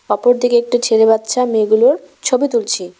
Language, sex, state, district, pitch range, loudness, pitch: Bengali, female, West Bengal, Cooch Behar, 220-250 Hz, -14 LUFS, 240 Hz